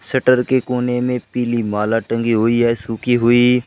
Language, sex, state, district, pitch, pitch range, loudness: Hindi, male, Uttar Pradesh, Shamli, 120 Hz, 115-125 Hz, -17 LUFS